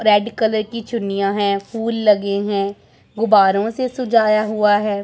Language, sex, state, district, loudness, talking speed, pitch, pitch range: Hindi, male, Punjab, Pathankot, -18 LUFS, 155 wpm, 210 Hz, 200-225 Hz